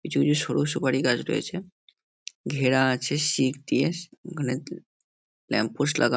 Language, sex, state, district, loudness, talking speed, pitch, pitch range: Bengali, male, West Bengal, North 24 Parganas, -25 LUFS, 155 wpm, 145 Hz, 130-165 Hz